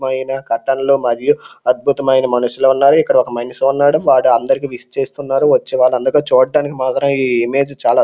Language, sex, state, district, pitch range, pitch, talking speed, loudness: Telugu, male, Andhra Pradesh, Srikakulam, 125-140 Hz, 135 Hz, 150 wpm, -14 LUFS